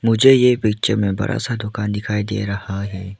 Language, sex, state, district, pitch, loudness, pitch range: Hindi, male, Arunachal Pradesh, Lower Dibang Valley, 105 Hz, -18 LUFS, 100-115 Hz